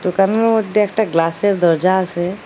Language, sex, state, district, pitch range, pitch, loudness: Bengali, female, Assam, Hailakandi, 175-210 Hz, 190 Hz, -16 LUFS